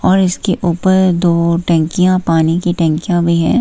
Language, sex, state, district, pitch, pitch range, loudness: Hindi, female, Himachal Pradesh, Shimla, 175 Hz, 165-185 Hz, -13 LUFS